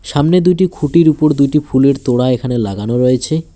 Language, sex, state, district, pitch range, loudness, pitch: Bengali, male, West Bengal, Alipurduar, 125-155 Hz, -13 LUFS, 140 Hz